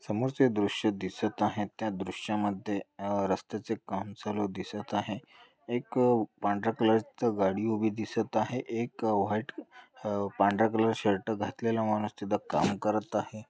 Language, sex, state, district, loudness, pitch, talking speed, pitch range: Marathi, male, Maharashtra, Dhule, -31 LUFS, 105 Hz, 160 wpm, 100-115 Hz